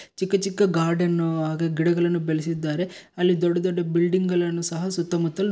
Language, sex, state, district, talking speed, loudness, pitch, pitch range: Kannada, male, Karnataka, Bellary, 165 wpm, -23 LUFS, 175 Hz, 165-180 Hz